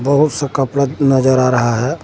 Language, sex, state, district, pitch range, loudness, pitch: Hindi, male, Jharkhand, Garhwa, 130-140 Hz, -14 LUFS, 135 Hz